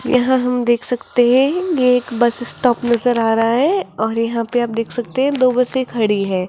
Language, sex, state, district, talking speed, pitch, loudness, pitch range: Hindi, female, Rajasthan, Jaipur, 220 wpm, 240 Hz, -16 LUFS, 230-255 Hz